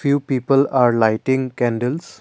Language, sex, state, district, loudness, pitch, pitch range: English, male, Assam, Kamrup Metropolitan, -18 LUFS, 130 Hz, 120-135 Hz